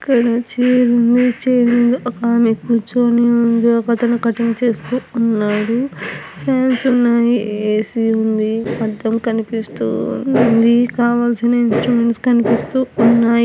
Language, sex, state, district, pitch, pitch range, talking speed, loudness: Telugu, female, Andhra Pradesh, Anantapur, 235 Hz, 230-245 Hz, 90 wpm, -15 LUFS